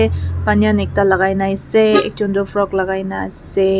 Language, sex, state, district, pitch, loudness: Nagamese, female, Nagaland, Kohima, 190 Hz, -16 LUFS